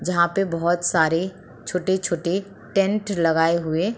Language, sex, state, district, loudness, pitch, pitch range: Hindi, female, Uttar Pradesh, Muzaffarnagar, -22 LUFS, 175 Hz, 165-190 Hz